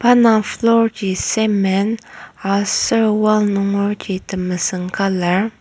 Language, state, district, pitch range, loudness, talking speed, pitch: Ao, Nagaland, Kohima, 190-220 Hz, -17 LUFS, 105 wpm, 200 Hz